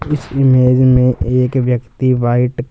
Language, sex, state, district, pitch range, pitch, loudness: Hindi, male, Punjab, Fazilka, 125-130 Hz, 125 Hz, -13 LUFS